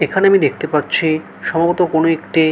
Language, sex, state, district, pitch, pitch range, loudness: Bengali, male, West Bengal, Malda, 165 Hz, 155-180 Hz, -16 LUFS